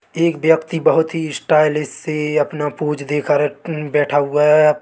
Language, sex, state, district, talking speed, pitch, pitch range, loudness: Hindi, male, Chhattisgarh, Bilaspur, 175 wpm, 150 Hz, 150-160 Hz, -17 LUFS